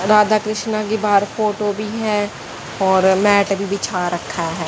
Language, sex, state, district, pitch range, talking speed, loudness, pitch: Hindi, female, Haryana, Jhajjar, 190-215 Hz, 165 wpm, -18 LUFS, 205 Hz